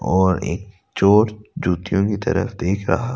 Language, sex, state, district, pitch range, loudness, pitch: Hindi, male, Delhi, New Delhi, 95-105 Hz, -20 LUFS, 100 Hz